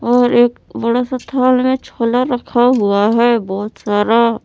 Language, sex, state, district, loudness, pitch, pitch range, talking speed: Hindi, female, Jharkhand, Palamu, -15 LUFS, 240 Hz, 230-250 Hz, 160 wpm